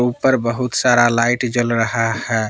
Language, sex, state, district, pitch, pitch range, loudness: Hindi, male, Jharkhand, Palamu, 120 Hz, 115-125 Hz, -17 LUFS